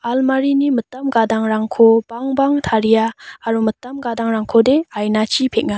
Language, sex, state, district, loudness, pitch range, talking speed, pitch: Garo, female, Meghalaya, West Garo Hills, -16 LUFS, 225-265 Hz, 105 wpm, 230 Hz